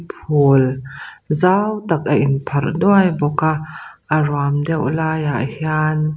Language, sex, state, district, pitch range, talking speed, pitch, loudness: Mizo, female, Mizoram, Aizawl, 145-160 Hz, 125 wpm, 155 Hz, -17 LUFS